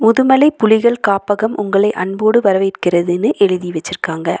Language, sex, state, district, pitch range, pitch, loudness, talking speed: Tamil, female, Tamil Nadu, Nilgiris, 185-220 Hz, 200 Hz, -14 LUFS, 110 wpm